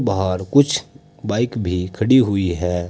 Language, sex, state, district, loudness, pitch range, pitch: Hindi, male, Uttar Pradesh, Saharanpur, -19 LUFS, 90-130 Hz, 110 Hz